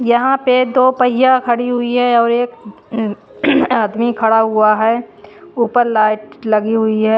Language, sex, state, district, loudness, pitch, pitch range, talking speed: Hindi, female, Chandigarh, Chandigarh, -14 LUFS, 235 Hz, 220-245 Hz, 150 wpm